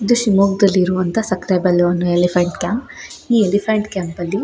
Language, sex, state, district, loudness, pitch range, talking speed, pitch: Kannada, female, Karnataka, Shimoga, -16 LUFS, 175-210 Hz, 150 wpm, 190 Hz